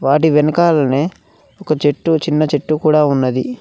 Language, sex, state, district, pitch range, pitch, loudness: Telugu, male, Telangana, Mahabubabad, 145-155 Hz, 150 Hz, -15 LUFS